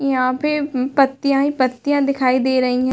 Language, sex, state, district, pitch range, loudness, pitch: Hindi, female, Uttar Pradesh, Hamirpur, 255-280 Hz, -18 LUFS, 265 Hz